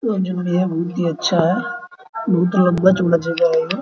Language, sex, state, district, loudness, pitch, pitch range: Hindi, male, Bihar, Araria, -18 LUFS, 185 Hz, 175-225 Hz